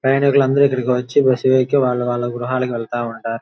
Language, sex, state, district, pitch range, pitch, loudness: Telugu, male, Andhra Pradesh, Guntur, 120-135 Hz, 125 Hz, -17 LUFS